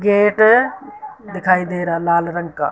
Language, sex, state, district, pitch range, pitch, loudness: Hindi, female, Punjab, Fazilka, 170-215 Hz, 185 Hz, -16 LUFS